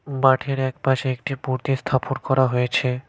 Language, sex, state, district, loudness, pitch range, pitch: Bengali, male, West Bengal, Cooch Behar, -22 LUFS, 130-135 Hz, 130 Hz